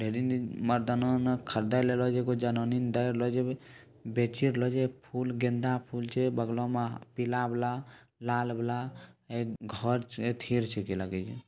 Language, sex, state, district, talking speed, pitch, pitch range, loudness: Maithili, male, Bihar, Bhagalpur, 100 wpm, 120 Hz, 120-125 Hz, -31 LUFS